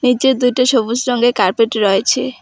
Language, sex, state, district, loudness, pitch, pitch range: Bengali, female, West Bengal, Alipurduar, -14 LUFS, 250 Hz, 225-255 Hz